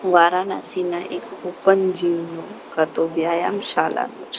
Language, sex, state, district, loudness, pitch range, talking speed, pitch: Gujarati, female, Gujarat, Gandhinagar, -21 LUFS, 170-185 Hz, 110 wpm, 175 Hz